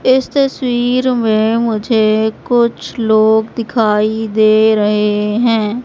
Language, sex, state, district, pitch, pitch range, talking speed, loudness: Hindi, female, Madhya Pradesh, Katni, 220 Hz, 215-240 Hz, 105 wpm, -13 LUFS